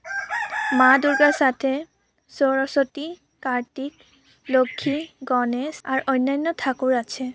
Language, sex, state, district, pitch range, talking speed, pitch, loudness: Bengali, female, West Bengal, Purulia, 260-295 Hz, 80 wpm, 270 Hz, -22 LUFS